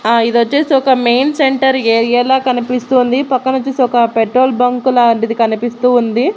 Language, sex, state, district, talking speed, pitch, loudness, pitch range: Telugu, female, Andhra Pradesh, Annamaya, 150 wpm, 250 Hz, -12 LUFS, 235-260 Hz